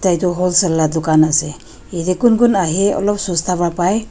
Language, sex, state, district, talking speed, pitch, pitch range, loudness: Nagamese, female, Nagaland, Dimapur, 190 wpm, 180 Hz, 160-195 Hz, -15 LUFS